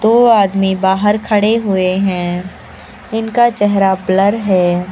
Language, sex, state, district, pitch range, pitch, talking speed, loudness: Hindi, female, Uttar Pradesh, Lucknow, 185-215 Hz, 195 Hz, 120 wpm, -13 LUFS